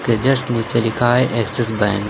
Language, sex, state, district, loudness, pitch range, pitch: Hindi, male, Uttar Pradesh, Lucknow, -18 LUFS, 110-120 Hz, 115 Hz